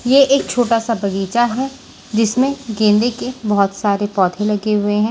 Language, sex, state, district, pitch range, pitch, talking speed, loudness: Hindi, female, Maharashtra, Washim, 205-245 Hz, 220 Hz, 175 wpm, -17 LUFS